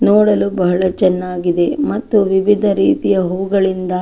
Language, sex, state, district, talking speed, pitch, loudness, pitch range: Kannada, female, Karnataka, Chamarajanagar, 135 wpm, 190 Hz, -15 LUFS, 180-205 Hz